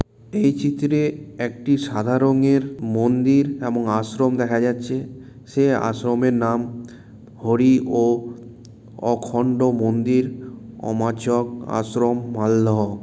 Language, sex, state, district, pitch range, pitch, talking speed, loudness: Bengali, male, West Bengal, Malda, 115-130 Hz, 120 Hz, 90 wpm, -21 LUFS